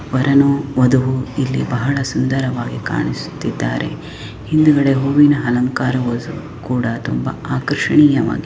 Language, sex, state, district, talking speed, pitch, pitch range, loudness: Kannada, female, Karnataka, Chamarajanagar, 85 wpm, 130 Hz, 125-140 Hz, -16 LUFS